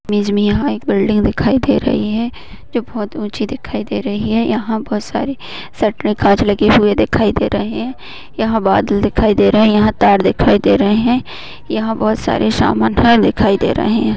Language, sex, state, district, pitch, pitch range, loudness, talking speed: Hindi, female, Uttar Pradesh, Muzaffarnagar, 215 Hz, 205-230 Hz, -14 LUFS, 205 wpm